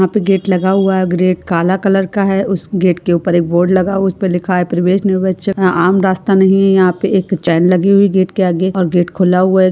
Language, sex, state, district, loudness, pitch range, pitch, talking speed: Hindi, female, Bihar, Jahanabad, -13 LUFS, 180-195 Hz, 185 Hz, 260 wpm